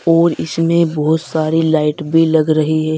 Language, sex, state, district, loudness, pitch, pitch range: Hindi, male, Uttar Pradesh, Saharanpur, -15 LUFS, 160 Hz, 155-165 Hz